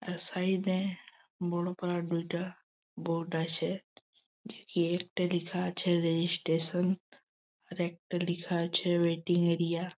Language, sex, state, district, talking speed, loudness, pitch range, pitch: Bengali, male, West Bengal, Malda, 100 wpm, -32 LUFS, 170-180 Hz, 175 Hz